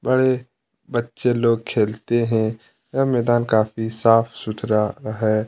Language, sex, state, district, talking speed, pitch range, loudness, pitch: Hindi, male, Chhattisgarh, Kabirdham, 120 wpm, 110-125 Hz, -20 LUFS, 115 Hz